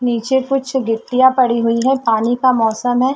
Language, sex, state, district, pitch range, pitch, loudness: Hindi, female, Chhattisgarh, Bastar, 230-260 Hz, 245 Hz, -15 LUFS